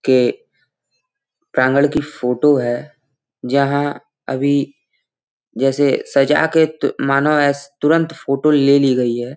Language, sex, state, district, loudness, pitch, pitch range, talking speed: Hindi, male, Uttar Pradesh, Gorakhpur, -16 LUFS, 140 Hz, 135-150 Hz, 115 wpm